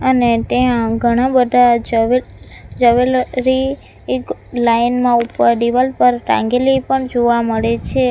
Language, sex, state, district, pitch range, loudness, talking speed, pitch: Gujarati, female, Gujarat, Valsad, 235-255 Hz, -15 LUFS, 125 wpm, 245 Hz